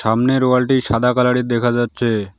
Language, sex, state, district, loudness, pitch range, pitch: Bengali, male, West Bengal, Alipurduar, -16 LUFS, 115-125 Hz, 120 Hz